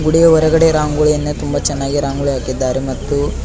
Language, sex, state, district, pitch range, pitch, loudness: Kannada, male, Karnataka, Bidar, 135-155 Hz, 145 Hz, -15 LUFS